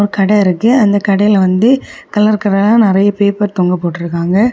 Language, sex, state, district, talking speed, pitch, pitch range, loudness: Tamil, female, Tamil Nadu, Kanyakumari, 145 wpm, 200 Hz, 190-210 Hz, -12 LUFS